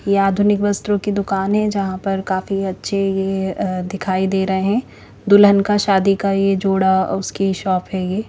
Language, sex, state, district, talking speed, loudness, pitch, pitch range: Hindi, female, Chandigarh, Chandigarh, 180 wpm, -18 LUFS, 195 Hz, 190-200 Hz